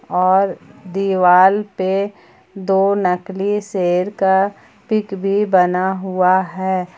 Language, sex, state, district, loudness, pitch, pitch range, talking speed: Hindi, female, Jharkhand, Palamu, -17 LUFS, 190 Hz, 185-195 Hz, 105 wpm